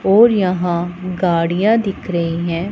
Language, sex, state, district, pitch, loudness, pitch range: Hindi, female, Punjab, Pathankot, 180 Hz, -17 LUFS, 170-195 Hz